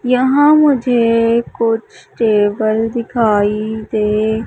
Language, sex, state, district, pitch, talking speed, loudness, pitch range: Hindi, female, Madhya Pradesh, Umaria, 225 Hz, 80 wpm, -14 LUFS, 215-240 Hz